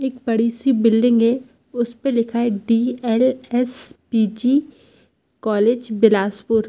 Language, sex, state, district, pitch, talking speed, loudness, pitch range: Hindi, female, Chhattisgarh, Bilaspur, 235 Hz, 100 wpm, -19 LUFS, 225-250 Hz